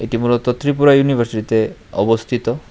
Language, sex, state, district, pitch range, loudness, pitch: Bengali, male, Tripura, West Tripura, 115-135 Hz, -16 LUFS, 120 Hz